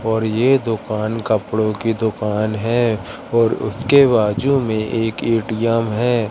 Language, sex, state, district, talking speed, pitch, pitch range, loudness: Hindi, male, Madhya Pradesh, Katni, 135 wpm, 115 Hz, 110-115 Hz, -18 LUFS